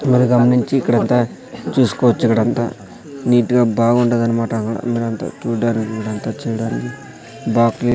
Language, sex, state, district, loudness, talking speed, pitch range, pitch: Telugu, male, Andhra Pradesh, Sri Satya Sai, -17 LUFS, 100 wpm, 115-120 Hz, 115 Hz